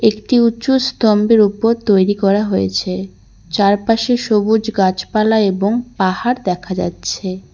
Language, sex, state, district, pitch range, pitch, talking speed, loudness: Bengali, female, West Bengal, Cooch Behar, 190-230 Hz, 210 Hz, 110 wpm, -15 LUFS